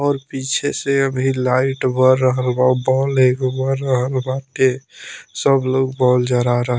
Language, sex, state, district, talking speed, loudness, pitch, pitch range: Bhojpuri, male, Bihar, Muzaffarpur, 175 wpm, -17 LUFS, 130 Hz, 125-135 Hz